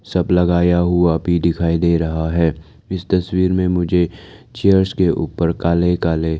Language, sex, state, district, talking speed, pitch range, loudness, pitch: Hindi, male, Arunachal Pradesh, Lower Dibang Valley, 160 wpm, 85-90 Hz, -17 LUFS, 85 Hz